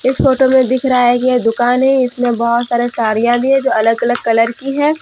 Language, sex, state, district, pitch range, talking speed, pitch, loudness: Hindi, female, Jharkhand, Deoghar, 235-260 Hz, 285 wpm, 245 Hz, -13 LUFS